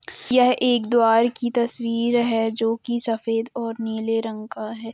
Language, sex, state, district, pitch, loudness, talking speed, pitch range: Hindi, female, Jharkhand, Sahebganj, 230 Hz, -22 LUFS, 170 wpm, 225-240 Hz